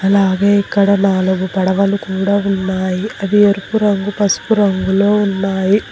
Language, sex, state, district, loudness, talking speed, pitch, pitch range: Telugu, female, Telangana, Hyderabad, -14 LUFS, 120 wpm, 200 Hz, 190-205 Hz